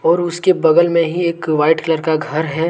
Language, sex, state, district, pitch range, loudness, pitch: Hindi, male, Jharkhand, Deoghar, 160-170 Hz, -15 LUFS, 165 Hz